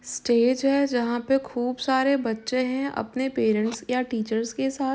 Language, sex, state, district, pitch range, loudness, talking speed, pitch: Hindi, female, Uttar Pradesh, Jyotiba Phule Nagar, 235-270 Hz, -25 LUFS, 170 wpm, 255 Hz